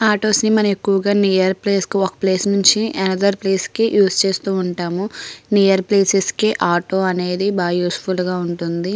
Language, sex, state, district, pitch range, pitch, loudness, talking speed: Telugu, female, Andhra Pradesh, Srikakulam, 185-200 Hz, 195 Hz, -17 LUFS, 160 wpm